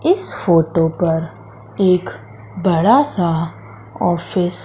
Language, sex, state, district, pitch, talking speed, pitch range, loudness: Hindi, female, Madhya Pradesh, Katni, 170 Hz, 105 wpm, 115-180 Hz, -17 LUFS